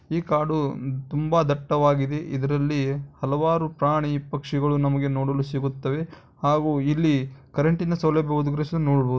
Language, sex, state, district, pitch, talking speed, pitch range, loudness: Kannada, male, Karnataka, Bijapur, 145 Hz, 110 wpm, 140-155 Hz, -24 LUFS